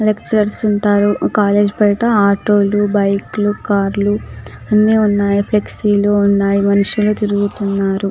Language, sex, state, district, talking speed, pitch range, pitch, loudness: Telugu, female, Telangana, Nalgonda, 140 wpm, 200-210 Hz, 205 Hz, -14 LUFS